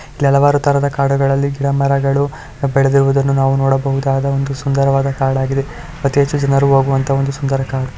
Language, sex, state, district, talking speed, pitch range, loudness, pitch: Kannada, male, Karnataka, Shimoga, 145 wpm, 135-140 Hz, -15 LUFS, 135 Hz